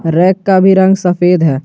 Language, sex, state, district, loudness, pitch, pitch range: Hindi, male, Jharkhand, Garhwa, -10 LUFS, 180 Hz, 175-190 Hz